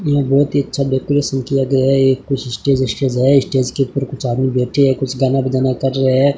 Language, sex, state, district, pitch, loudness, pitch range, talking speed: Hindi, male, Rajasthan, Bikaner, 135 Hz, -16 LUFS, 130-140 Hz, 245 wpm